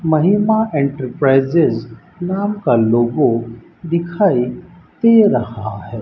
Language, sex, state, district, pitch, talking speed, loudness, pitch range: Hindi, male, Rajasthan, Bikaner, 140 Hz, 90 wpm, -16 LUFS, 115-180 Hz